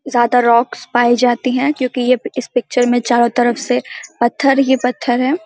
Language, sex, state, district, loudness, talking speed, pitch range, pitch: Hindi, female, Bihar, Samastipur, -15 LUFS, 185 wpm, 240-255 Hz, 245 Hz